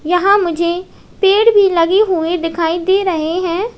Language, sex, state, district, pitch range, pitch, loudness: Hindi, female, Uttar Pradesh, Lalitpur, 340-395 Hz, 360 Hz, -14 LUFS